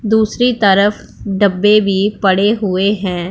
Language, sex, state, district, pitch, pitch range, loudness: Hindi, male, Punjab, Pathankot, 200 Hz, 195-210 Hz, -13 LUFS